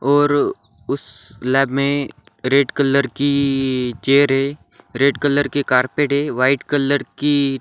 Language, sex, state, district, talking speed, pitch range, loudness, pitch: Hindi, male, Maharashtra, Washim, 135 wpm, 130-145 Hz, -18 LUFS, 140 Hz